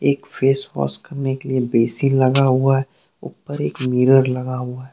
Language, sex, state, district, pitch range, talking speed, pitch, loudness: Hindi, male, Jharkhand, Deoghar, 125-135 Hz, 195 wpm, 130 Hz, -18 LUFS